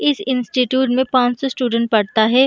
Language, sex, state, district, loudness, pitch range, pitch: Hindi, female, Uttar Pradesh, Jyotiba Phule Nagar, -17 LUFS, 230-260 Hz, 250 Hz